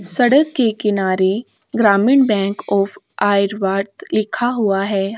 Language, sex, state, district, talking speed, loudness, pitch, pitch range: Hindi, female, Uttar Pradesh, Etah, 115 wpm, -17 LUFS, 205 Hz, 195-240 Hz